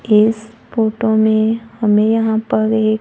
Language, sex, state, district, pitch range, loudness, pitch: Hindi, female, Maharashtra, Gondia, 215-225 Hz, -15 LUFS, 220 Hz